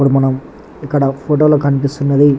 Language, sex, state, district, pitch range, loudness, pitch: Telugu, male, Telangana, Nalgonda, 135-145 Hz, -14 LUFS, 140 Hz